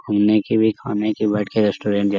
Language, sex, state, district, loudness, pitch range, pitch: Hindi, male, Bihar, Jamui, -19 LUFS, 105-110 Hz, 105 Hz